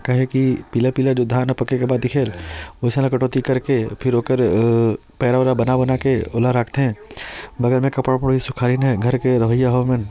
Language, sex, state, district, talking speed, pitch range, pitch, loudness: Chhattisgarhi, male, Chhattisgarh, Sarguja, 220 wpm, 120-130 Hz, 125 Hz, -18 LUFS